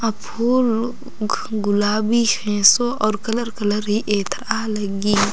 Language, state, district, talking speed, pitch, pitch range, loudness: Kurukh, Chhattisgarh, Jashpur, 110 wpm, 220 Hz, 205-235 Hz, -19 LUFS